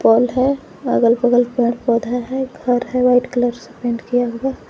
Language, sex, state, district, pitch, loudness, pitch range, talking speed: Hindi, female, Jharkhand, Garhwa, 245 Hz, -18 LUFS, 240-255 Hz, 190 wpm